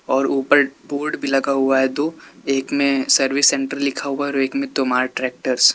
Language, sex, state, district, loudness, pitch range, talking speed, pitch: Hindi, male, Uttar Pradesh, Lalitpur, -19 LUFS, 135-140 Hz, 210 wpm, 135 Hz